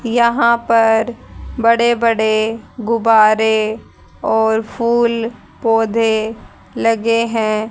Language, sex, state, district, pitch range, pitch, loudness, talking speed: Hindi, female, Haryana, Rohtak, 220-235 Hz, 230 Hz, -15 LUFS, 80 wpm